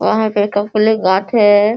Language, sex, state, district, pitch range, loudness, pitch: Hindi, female, Bihar, Sitamarhi, 205-220 Hz, -14 LUFS, 210 Hz